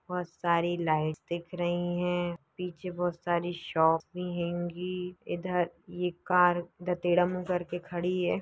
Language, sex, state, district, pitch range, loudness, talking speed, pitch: Hindi, female, Uttar Pradesh, Deoria, 170-180 Hz, -31 LUFS, 130 wpm, 175 Hz